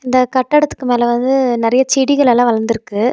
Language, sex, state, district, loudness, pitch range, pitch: Tamil, female, Tamil Nadu, Nilgiris, -14 LUFS, 240-265 Hz, 250 Hz